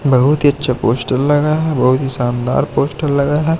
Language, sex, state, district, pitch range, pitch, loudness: Hindi, male, Madhya Pradesh, Katni, 125-145 Hz, 140 Hz, -15 LUFS